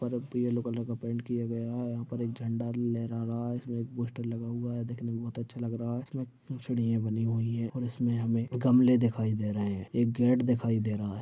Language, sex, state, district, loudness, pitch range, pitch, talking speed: Hindi, male, Maharashtra, Chandrapur, -31 LUFS, 115-120 Hz, 120 Hz, 275 wpm